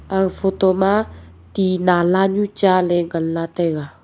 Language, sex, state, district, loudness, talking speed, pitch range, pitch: Wancho, female, Arunachal Pradesh, Longding, -18 LUFS, 150 wpm, 165-190 Hz, 185 Hz